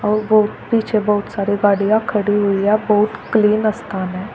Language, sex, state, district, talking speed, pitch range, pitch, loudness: Hindi, female, Uttar Pradesh, Shamli, 180 wpm, 205-215 Hz, 210 Hz, -17 LUFS